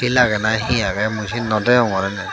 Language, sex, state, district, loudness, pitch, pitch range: Chakma, female, Tripura, Dhalai, -18 LUFS, 110 Hz, 105-120 Hz